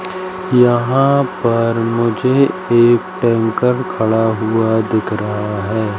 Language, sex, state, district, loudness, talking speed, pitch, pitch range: Hindi, male, Madhya Pradesh, Katni, -15 LUFS, 100 wpm, 115 Hz, 110-125 Hz